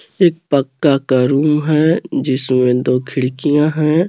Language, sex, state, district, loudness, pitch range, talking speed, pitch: Hindi, male, Jharkhand, Garhwa, -15 LUFS, 130-155 Hz, 120 wpm, 140 Hz